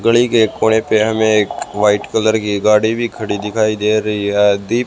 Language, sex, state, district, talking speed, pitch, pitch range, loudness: Hindi, male, Haryana, Rohtak, 220 wpm, 110 Hz, 105-110 Hz, -15 LUFS